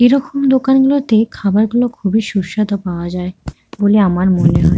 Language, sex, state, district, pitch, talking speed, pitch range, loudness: Bengali, female, West Bengal, Kolkata, 210 Hz, 165 wpm, 185-245 Hz, -14 LUFS